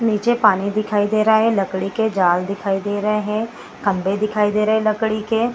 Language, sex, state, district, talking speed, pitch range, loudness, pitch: Hindi, female, Bihar, Gaya, 215 wpm, 200-220 Hz, -19 LUFS, 210 Hz